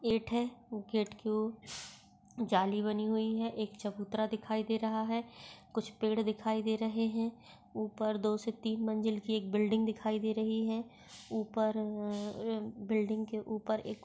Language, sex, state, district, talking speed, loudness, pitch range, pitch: Hindi, female, Maharashtra, Pune, 160 wpm, -35 LUFS, 215-225 Hz, 220 Hz